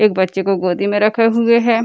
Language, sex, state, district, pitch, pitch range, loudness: Hindi, female, Bihar, Gaya, 210 Hz, 195-230 Hz, -15 LUFS